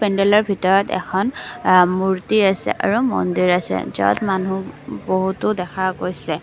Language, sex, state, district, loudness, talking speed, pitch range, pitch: Assamese, female, Assam, Kamrup Metropolitan, -19 LUFS, 130 wpm, 180-200 Hz, 190 Hz